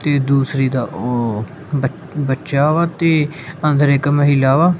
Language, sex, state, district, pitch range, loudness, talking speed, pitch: Punjabi, male, Punjab, Kapurthala, 135-155 Hz, -17 LUFS, 150 wpm, 145 Hz